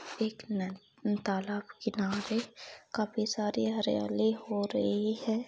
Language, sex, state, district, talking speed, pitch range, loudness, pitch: Hindi, female, Maharashtra, Chandrapur, 110 wpm, 195-220 Hz, -33 LUFS, 210 Hz